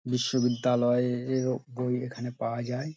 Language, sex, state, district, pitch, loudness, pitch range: Bengali, male, West Bengal, Dakshin Dinajpur, 125 Hz, -29 LUFS, 120-125 Hz